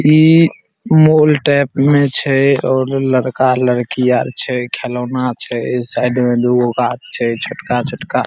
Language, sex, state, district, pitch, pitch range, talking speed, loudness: Maithili, male, Bihar, Saharsa, 130 Hz, 125-140 Hz, 125 wpm, -14 LUFS